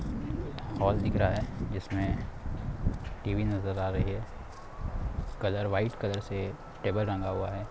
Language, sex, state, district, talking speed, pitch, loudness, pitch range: Hindi, male, Bihar, East Champaran, 140 wpm, 100 Hz, -33 LUFS, 95-105 Hz